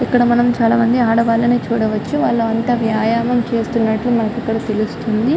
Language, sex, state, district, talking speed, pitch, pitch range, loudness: Telugu, female, Telangana, Karimnagar, 125 wpm, 230 Hz, 225-240 Hz, -16 LUFS